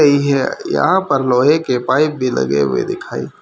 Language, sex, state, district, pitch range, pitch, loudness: Hindi, male, Haryana, Rohtak, 125-150 Hz, 135 Hz, -16 LUFS